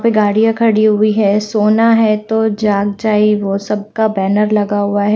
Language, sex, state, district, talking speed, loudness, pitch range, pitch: Hindi, female, Haryana, Jhajjar, 185 wpm, -13 LUFS, 205-220 Hz, 210 Hz